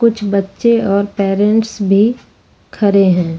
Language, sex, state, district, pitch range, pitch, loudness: Hindi, female, Jharkhand, Ranchi, 195-220 Hz, 200 Hz, -14 LUFS